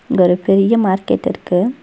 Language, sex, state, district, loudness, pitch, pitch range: Tamil, female, Tamil Nadu, Nilgiris, -15 LUFS, 195 Hz, 180-220 Hz